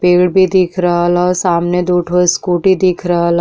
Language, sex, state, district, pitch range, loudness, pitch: Bhojpuri, female, Uttar Pradesh, Deoria, 175-180 Hz, -13 LUFS, 180 Hz